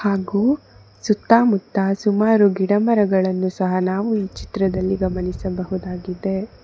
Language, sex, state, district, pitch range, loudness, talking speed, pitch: Kannada, female, Karnataka, Bangalore, 185-210 Hz, -20 LUFS, 70 wpm, 195 Hz